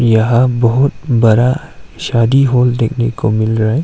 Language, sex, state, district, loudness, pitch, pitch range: Hindi, male, Arunachal Pradesh, Longding, -13 LUFS, 120 Hz, 115-130 Hz